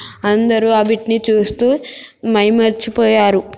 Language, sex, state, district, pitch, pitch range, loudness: Telugu, female, Telangana, Nalgonda, 225 Hz, 215-230 Hz, -14 LUFS